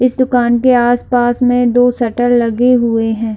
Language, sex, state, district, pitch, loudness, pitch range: Hindi, female, Jharkhand, Sahebganj, 245 Hz, -12 LUFS, 235-245 Hz